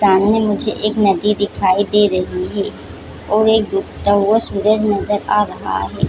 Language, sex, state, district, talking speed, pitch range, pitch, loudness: Hindi, female, Chhattisgarh, Bilaspur, 170 wpm, 195-215 Hz, 205 Hz, -16 LUFS